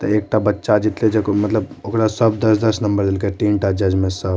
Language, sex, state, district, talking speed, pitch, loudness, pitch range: Maithili, male, Bihar, Madhepura, 235 wpm, 105 Hz, -18 LUFS, 100-110 Hz